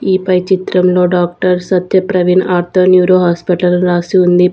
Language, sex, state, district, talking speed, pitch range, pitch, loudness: Telugu, female, Andhra Pradesh, Sri Satya Sai, 160 wpm, 180-185 Hz, 180 Hz, -11 LUFS